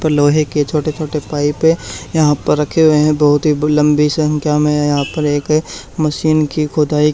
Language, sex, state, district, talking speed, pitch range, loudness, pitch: Hindi, male, Haryana, Charkhi Dadri, 185 wpm, 150-155 Hz, -14 LUFS, 150 Hz